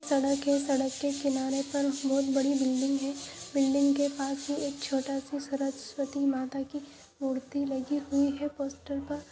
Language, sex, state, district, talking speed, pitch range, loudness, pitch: Hindi, female, Jharkhand, Jamtara, 165 wpm, 275-285 Hz, -30 LUFS, 275 Hz